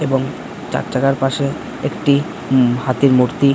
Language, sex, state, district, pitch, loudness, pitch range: Bengali, male, West Bengal, Kolkata, 135 Hz, -17 LUFS, 130-140 Hz